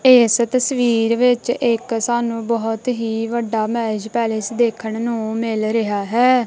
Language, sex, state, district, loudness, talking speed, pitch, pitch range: Punjabi, female, Punjab, Kapurthala, -18 LUFS, 140 wpm, 230 Hz, 225-240 Hz